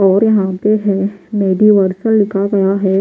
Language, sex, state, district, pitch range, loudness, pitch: Hindi, female, Bihar, Patna, 195-210 Hz, -13 LUFS, 200 Hz